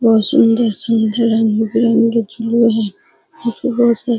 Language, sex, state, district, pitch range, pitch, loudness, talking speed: Hindi, female, Bihar, Araria, 225-235 Hz, 230 Hz, -15 LUFS, 145 wpm